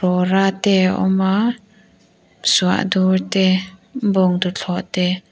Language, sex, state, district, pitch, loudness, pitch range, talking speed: Mizo, female, Mizoram, Aizawl, 190 Hz, -17 LUFS, 185-195 Hz, 90 wpm